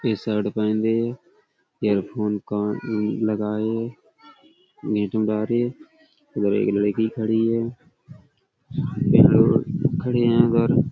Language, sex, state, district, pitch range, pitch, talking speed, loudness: Hindi, male, Uttar Pradesh, Budaun, 105-120 Hz, 110 Hz, 90 wpm, -22 LUFS